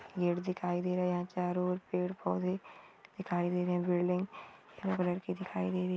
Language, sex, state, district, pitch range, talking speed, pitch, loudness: Marwari, female, Rajasthan, Churu, 175-180 Hz, 210 wpm, 180 Hz, -35 LUFS